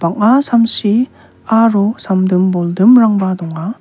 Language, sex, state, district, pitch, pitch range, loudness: Garo, male, Meghalaya, South Garo Hills, 205 Hz, 185-230 Hz, -12 LUFS